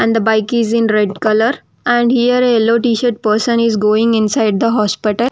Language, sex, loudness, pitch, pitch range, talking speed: English, female, -14 LUFS, 230 Hz, 215-240 Hz, 205 wpm